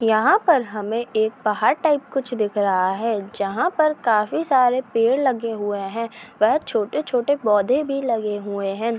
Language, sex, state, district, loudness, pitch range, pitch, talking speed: Hindi, female, Chhattisgarh, Raigarh, -21 LUFS, 210-270 Hz, 230 Hz, 165 wpm